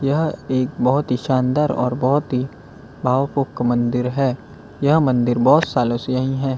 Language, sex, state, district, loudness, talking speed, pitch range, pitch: Hindi, male, Maharashtra, Gondia, -19 LUFS, 180 wpm, 125-140 Hz, 130 Hz